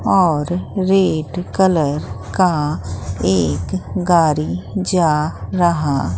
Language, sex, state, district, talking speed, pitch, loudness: Hindi, female, Bihar, Katihar, 80 wpm, 155 Hz, -18 LUFS